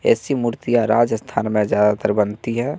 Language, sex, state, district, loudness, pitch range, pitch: Hindi, male, Bihar, West Champaran, -19 LUFS, 105-120 Hz, 115 Hz